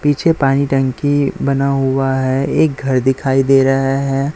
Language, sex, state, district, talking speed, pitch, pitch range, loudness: Hindi, male, Chhattisgarh, Raipur, 165 wpm, 135 Hz, 135-140 Hz, -15 LUFS